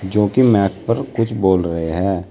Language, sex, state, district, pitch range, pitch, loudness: Hindi, male, Uttar Pradesh, Saharanpur, 95-115 Hz, 100 Hz, -17 LUFS